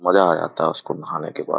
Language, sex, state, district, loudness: Hindi, male, Bihar, Begusarai, -21 LUFS